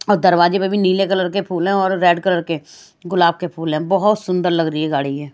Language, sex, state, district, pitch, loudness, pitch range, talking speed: Hindi, female, Haryana, Rohtak, 180 Hz, -17 LUFS, 165-195 Hz, 280 wpm